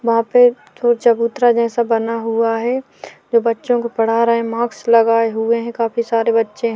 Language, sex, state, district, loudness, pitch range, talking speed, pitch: Hindi, female, Chhattisgarh, Korba, -16 LUFS, 230-235 Hz, 195 wpm, 230 Hz